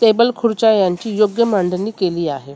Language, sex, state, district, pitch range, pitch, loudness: Marathi, female, Maharashtra, Mumbai Suburban, 180-225 Hz, 210 Hz, -16 LUFS